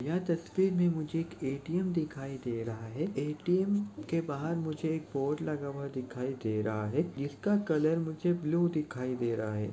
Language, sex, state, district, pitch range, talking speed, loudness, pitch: Hindi, male, Chhattisgarh, Sarguja, 135-170 Hz, 180 wpm, -33 LUFS, 155 Hz